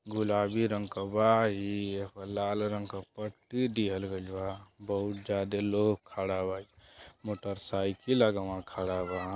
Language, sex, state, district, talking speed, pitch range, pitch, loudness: Bhojpuri, male, Uttar Pradesh, Deoria, 140 wpm, 95-105 Hz, 100 Hz, -32 LUFS